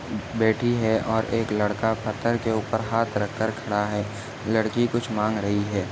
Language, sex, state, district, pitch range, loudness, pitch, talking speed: Hindi, male, Maharashtra, Nagpur, 105-115 Hz, -25 LUFS, 110 Hz, 170 wpm